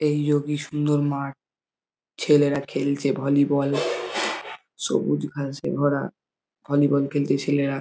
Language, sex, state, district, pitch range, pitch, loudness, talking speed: Bengali, male, West Bengal, Jhargram, 140-145 Hz, 140 Hz, -23 LUFS, 105 wpm